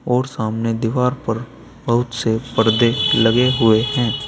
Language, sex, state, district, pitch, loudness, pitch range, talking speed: Hindi, male, Uttar Pradesh, Saharanpur, 115 Hz, -17 LUFS, 115-125 Hz, 140 wpm